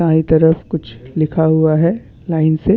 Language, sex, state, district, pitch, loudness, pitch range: Hindi, male, Chhattisgarh, Bastar, 160 Hz, -15 LUFS, 155-165 Hz